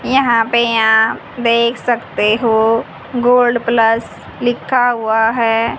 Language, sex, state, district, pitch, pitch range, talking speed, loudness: Hindi, female, Haryana, Jhajjar, 235 Hz, 225-240 Hz, 115 wpm, -14 LUFS